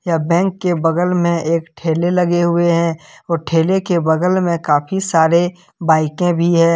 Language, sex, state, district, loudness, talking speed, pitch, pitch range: Hindi, male, Jharkhand, Deoghar, -16 LUFS, 175 wpm, 170 Hz, 165-175 Hz